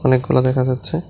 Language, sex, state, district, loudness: Bengali, male, Tripura, West Tripura, -18 LUFS